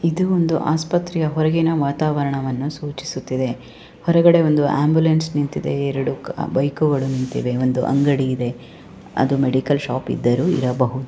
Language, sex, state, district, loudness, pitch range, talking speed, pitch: Kannada, female, Karnataka, Chamarajanagar, -19 LUFS, 130-160 Hz, 115 wpm, 140 Hz